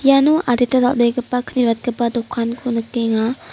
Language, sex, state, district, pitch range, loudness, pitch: Garo, female, Meghalaya, West Garo Hills, 235-250 Hz, -18 LUFS, 245 Hz